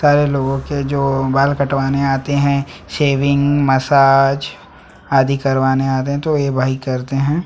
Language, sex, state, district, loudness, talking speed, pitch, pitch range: Hindi, male, Chhattisgarh, Sukma, -16 LUFS, 155 wpm, 140 Hz, 135-140 Hz